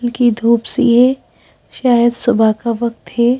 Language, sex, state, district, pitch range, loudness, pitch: Hindi, female, Madhya Pradesh, Bhopal, 235-245 Hz, -14 LUFS, 235 Hz